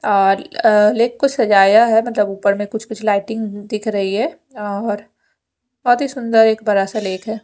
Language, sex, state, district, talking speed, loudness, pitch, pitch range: Hindi, female, Punjab, Fazilka, 195 wpm, -16 LUFS, 215 Hz, 205-235 Hz